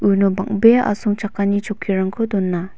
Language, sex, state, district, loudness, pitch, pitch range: Garo, female, Meghalaya, West Garo Hills, -18 LUFS, 200 Hz, 195-210 Hz